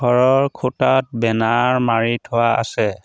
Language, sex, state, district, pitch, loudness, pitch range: Assamese, male, Assam, Sonitpur, 120 Hz, -17 LUFS, 115-130 Hz